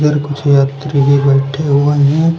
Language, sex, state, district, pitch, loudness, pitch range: Hindi, male, Uttar Pradesh, Lucknow, 145 Hz, -12 LUFS, 140-150 Hz